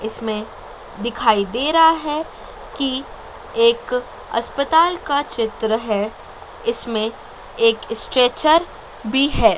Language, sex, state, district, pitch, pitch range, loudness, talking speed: Hindi, female, Madhya Pradesh, Dhar, 250 Hz, 225-310 Hz, -19 LUFS, 100 wpm